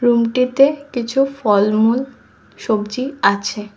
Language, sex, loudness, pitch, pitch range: Bengali, female, -17 LUFS, 240 Hz, 215-265 Hz